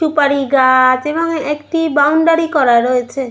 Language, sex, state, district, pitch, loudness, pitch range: Bengali, female, West Bengal, Jhargram, 290 Hz, -13 LUFS, 260-320 Hz